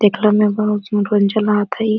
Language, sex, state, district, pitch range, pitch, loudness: Bhojpuri, male, Uttar Pradesh, Deoria, 205-215 Hz, 210 Hz, -16 LUFS